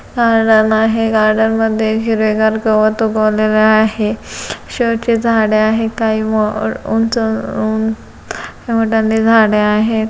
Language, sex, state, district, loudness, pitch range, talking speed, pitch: Marathi, female, Maharashtra, Solapur, -14 LUFS, 215-225 Hz, 90 wpm, 220 Hz